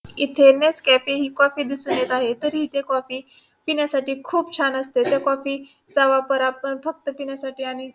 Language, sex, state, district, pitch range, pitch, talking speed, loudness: Marathi, female, Maharashtra, Pune, 265-285 Hz, 275 Hz, 180 wpm, -21 LUFS